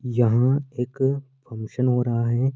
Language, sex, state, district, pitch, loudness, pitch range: Hindi, male, Chhattisgarh, Korba, 125 Hz, -23 LUFS, 120-135 Hz